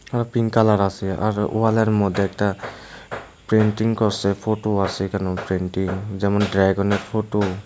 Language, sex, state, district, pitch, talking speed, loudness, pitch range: Bengali, male, Tripura, Unakoti, 100 Hz, 140 wpm, -21 LUFS, 95-110 Hz